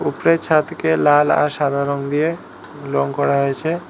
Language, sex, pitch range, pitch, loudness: Bengali, male, 140-160 Hz, 150 Hz, -18 LUFS